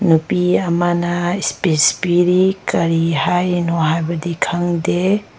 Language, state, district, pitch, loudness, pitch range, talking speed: Manipuri, Manipur, Imphal West, 175 Hz, -17 LUFS, 165-180 Hz, 90 wpm